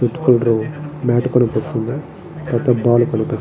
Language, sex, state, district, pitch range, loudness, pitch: Telugu, male, Andhra Pradesh, Srikakulam, 120-150 Hz, -17 LUFS, 120 Hz